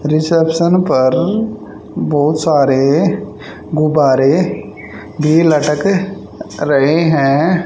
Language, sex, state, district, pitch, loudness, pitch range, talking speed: Hindi, male, Haryana, Rohtak, 155 Hz, -13 LUFS, 140-170 Hz, 70 wpm